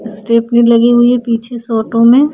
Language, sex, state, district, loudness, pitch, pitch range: Hindi, female, Bihar, Vaishali, -11 LUFS, 235 Hz, 230-240 Hz